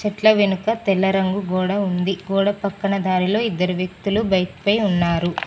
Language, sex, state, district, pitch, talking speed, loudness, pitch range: Telugu, female, Telangana, Mahabubabad, 195 Hz, 140 wpm, -20 LUFS, 185-205 Hz